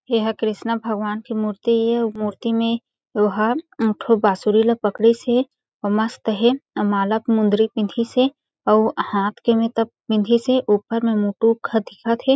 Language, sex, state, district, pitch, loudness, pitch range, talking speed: Chhattisgarhi, female, Chhattisgarh, Jashpur, 225 Hz, -20 LUFS, 215-235 Hz, 190 wpm